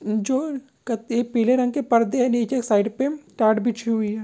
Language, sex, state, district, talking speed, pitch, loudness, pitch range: Maithili, female, Bihar, Begusarai, 200 wpm, 235 Hz, -22 LUFS, 220-260 Hz